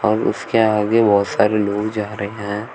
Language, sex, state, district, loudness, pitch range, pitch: Hindi, male, Uttar Pradesh, Shamli, -18 LUFS, 100-110 Hz, 105 Hz